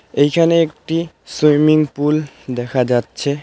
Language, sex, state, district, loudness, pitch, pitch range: Bengali, male, West Bengal, Alipurduar, -16 LUFS, 150 Hz, 135-155 Hz